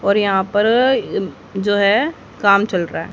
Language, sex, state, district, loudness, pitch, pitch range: Hindi, female, Haryana, Jhajjar, -17 LUFS, 205 Hz, 200-215 Hz